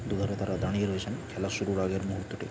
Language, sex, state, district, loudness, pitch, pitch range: Bengali, male, West Bengal, Purulia, -32 LUFS, 100 Hz, 95-100 Hz